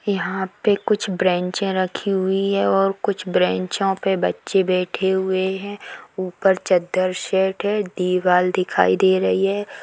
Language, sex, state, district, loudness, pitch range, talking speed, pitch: Hindi, female, Bihar, Sitamarhi, -20 LUFS, 180-195 Hz, 150 wpm, 190 Hz